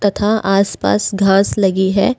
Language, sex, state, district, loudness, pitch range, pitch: Hindi, female, Delhi, New Delhi, -15 LUFS, 195-200 Hz, 195 Hz